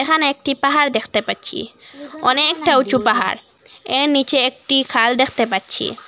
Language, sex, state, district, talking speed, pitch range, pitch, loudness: Bengali, female, Assam, Hailakandi, 140 wpm, 250-290 Hz, 270 Hz, -16 LUFS